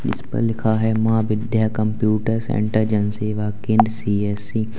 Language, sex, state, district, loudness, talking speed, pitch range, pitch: Hindi, male, Uttar Pradesh, Lalitpur, -20 LUFS, 150 wpm, 105-110 Hz, 110 Hz